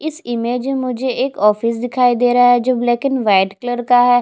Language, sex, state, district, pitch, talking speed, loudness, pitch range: Hindi, female, Chhattisgarh, Jashpur, 245 Hz, 240 wpm, -16 LUFS, 240-255 Hz